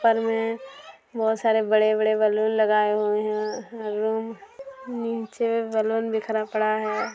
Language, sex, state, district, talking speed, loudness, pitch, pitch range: Hindi, female, Bihar, Saran, 125 wpm, -24 LUFS, 220 Hz, 215-230 Hz